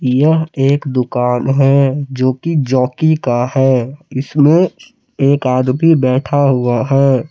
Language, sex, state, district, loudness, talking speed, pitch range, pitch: Hindi, male, Jharkhand, Palamu, -13 LUFS, 125 wpm, 130-150 Hz, 135 Hz